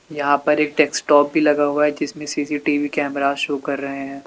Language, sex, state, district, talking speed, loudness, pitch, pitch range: Hindi, male, Uttar Pradesh, Lalitpur, 210 wpm, -19 LUFS, 145 Hz, 140-150 Hz